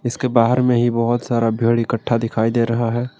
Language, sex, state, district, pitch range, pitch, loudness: Hindi, male, Jharkhand, Garhwa, 115-120 Hz, 115 Hz, -18 LUFS